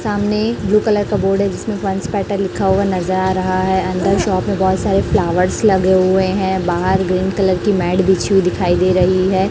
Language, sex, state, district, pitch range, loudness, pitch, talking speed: Hindi, female, Chhattisgarh, Raipur, 185-200 Hz, -16 LUFS, 190 Hz, 225 wpm